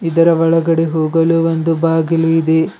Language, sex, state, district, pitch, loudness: Kannada, male, Karnataka, Bidar, 165 Hz, -14 LUFS